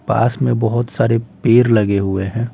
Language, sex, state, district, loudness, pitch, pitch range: Hindi, male, Bihar, Patna, -16 LUFS, 115 Hz, 110-120 Hz